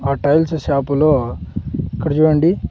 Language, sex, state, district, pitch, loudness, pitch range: Telugu, male, Andhra Pradesh, Sri Satya Sai, 145 Hz, -17 LUFS, 140-155 Hz